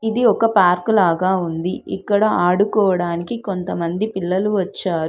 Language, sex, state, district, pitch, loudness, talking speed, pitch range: Telugu, female, Telangana, Hyderabad, 190 Hz, -18 LUFS, 120 wpm, 175-215 Hz